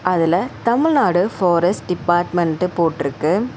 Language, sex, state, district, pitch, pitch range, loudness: Tamil, female, Tamil Nadu, Chennai, 175 Hz, 170-185 Hz, -18 LUFS